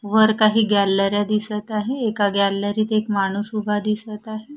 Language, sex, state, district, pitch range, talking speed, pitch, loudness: Marathi, female, Maharashtra, Washim, 205-215 Hz, 155 wpm, 210 Hz, -20 LUFS